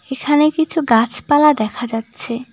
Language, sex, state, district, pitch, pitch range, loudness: Bengali, female, West Bengal, Cooch Behar, 255 Hz, 235-300 Hz, -16 LUFS